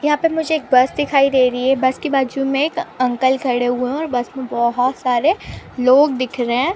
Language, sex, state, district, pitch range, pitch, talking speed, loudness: Hindi, female, Jharkhand, Sahebganj, 250-290 Hz, 260 Hz, 250 wpm, -17 LUFS